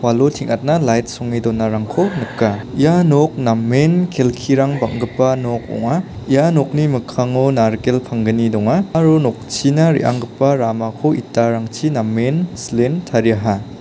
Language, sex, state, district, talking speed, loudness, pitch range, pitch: Garo, male, Meghalaya, South Garo Hills, 115 wpm, -16 LUFS, 115-145 Hz, 125 Hz